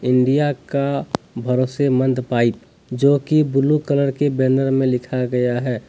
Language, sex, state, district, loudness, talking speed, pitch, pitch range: Hindi, male, Jharkhand, Deoghar, -19 LUFS, 155 wpm, 130 Hz, 125-140 Hz